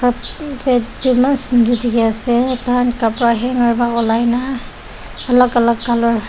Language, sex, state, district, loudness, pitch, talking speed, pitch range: Nagamese, female, Nagaland, Dimapur, -15 LUFS, 240 Hz, 145 wpm, 235-250 Hz